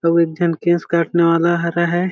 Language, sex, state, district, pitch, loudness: Chhattisgarhi, male, Chhattisgarh, Jashpur, 170 Hz, -17 LUFS